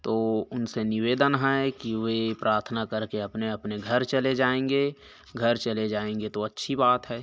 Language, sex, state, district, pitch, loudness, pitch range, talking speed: Chhattisgarhi, male, Chhattisgarh, Korba, 115 Hz, -27 LUFS, 110-130 Hz, 175 wpm